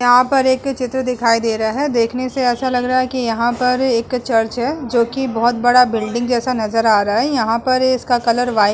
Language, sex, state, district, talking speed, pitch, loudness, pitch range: Hindi, female, Uttar Pradesh, Budaun, 245 wpm, 245 Hz, -16 LUFS, 230-255 Hz